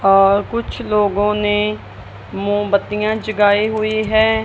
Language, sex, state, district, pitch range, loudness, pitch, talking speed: Hindi, female, Punjab, Kapurthala, 200-215 Hz, -17 LUFS, 210 Hz, 110 wpm